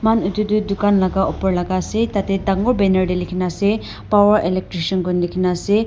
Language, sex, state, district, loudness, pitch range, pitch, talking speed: Nagamese, female, Nagaland, Dimapur, -18 LUFS, 185-210 Hz, 195 Hz, 225 wpm